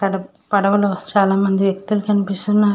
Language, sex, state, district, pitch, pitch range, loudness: Telugu, female, Andhra Pradesh, Srikakulam, 200 Hz, 195-205 Hz, -18 LUFS